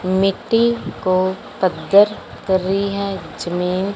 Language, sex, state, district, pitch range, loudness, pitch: Hindi, male, Punjab, Fazilka, 185-200 Hz, -18 LUFS, 190 Hz